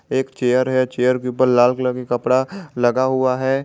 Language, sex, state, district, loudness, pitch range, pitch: Hindi, male, Jharkhand, Garhwa, -18 LUFS, 125-130 Hz, 130 Hz